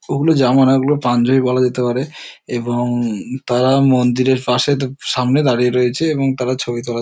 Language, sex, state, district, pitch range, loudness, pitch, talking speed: Bengali, male, West Bengal, North 24 Parganas, 125-135 Hz, -16 LUFS, 125 Hz, 190 wpm